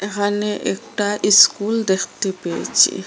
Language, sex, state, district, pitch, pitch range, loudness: Bengali, female, Assam, Hailakandi, 205 Hz, 200-205 Hz, -17 LUFS